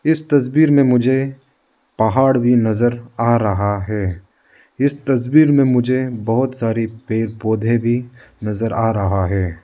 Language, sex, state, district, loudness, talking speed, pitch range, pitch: Hindi, male, Arunachal Pradesh, Lower Dibang Valley, -17 LUFS, 145 wpm, 110-130 Hz, 120 Hz